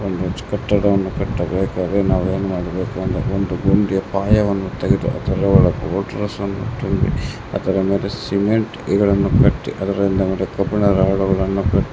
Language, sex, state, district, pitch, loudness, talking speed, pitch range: Kannada, male, Karnataka, Mysore, 100 Hz, -18 LUFS, 120 wpm, 95-100 Hz